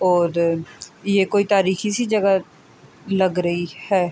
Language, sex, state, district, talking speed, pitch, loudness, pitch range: Urdu, female, Andhra Pradesh, Anantapur, 130 wpm, 190 Hz, -20 LUFS, 175-200 Hz